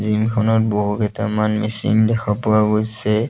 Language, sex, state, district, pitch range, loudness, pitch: Assamese, male, Assam, Sonitpur, 105-110 Hz, -16 LUFS, 110 Hz